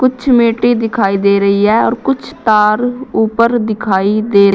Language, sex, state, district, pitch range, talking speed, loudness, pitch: Hindi, female, Uttar Pradesh, Saharanpur, 200-240 Hz, 160 wpm, -12 LUFS, 220 Hz